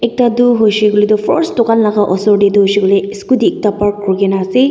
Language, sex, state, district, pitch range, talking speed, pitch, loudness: Nagamese, female, Nagaland, Dimapur, 200-235 Hz, 230 wpm, 210 Hz, -12 LUFS